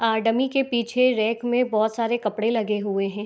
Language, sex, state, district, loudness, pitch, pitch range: Hindi, female, Bihar, Begusarai, -23 LUFS, 225 Hz, 215-240 Hz